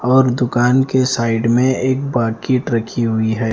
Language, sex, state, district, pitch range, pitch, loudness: Hindi, male, Punjab, Fazilka, 115-130 Hz, 120 Hz, -16 LUFS